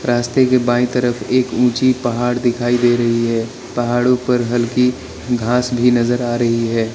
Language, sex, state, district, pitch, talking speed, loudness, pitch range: Hindi, male, Arunachal Pradesh, Lower Dibang Valley, 120 Hz, 170 wpm, -16 LUFS, 120-125 Hz